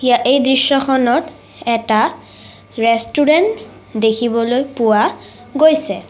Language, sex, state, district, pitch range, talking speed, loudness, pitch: Assamese, female, Assam, Sonitpur, 230-290 Hz, 70 wpm, -15 LUFS, 255 Hz